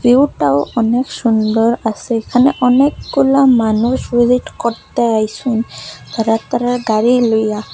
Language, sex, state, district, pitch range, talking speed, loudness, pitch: Bengali, female, Assam, Hailakandi, 220-250 Hz, 110 wpm, -14 LUFS, 235 Hz